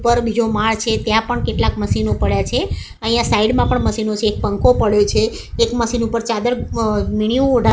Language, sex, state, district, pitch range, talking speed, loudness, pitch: Gujarati, female, Gujarat, Gandhinagar, 215-235 Hz, 200 wpm, -17 LUFS, 225 Hz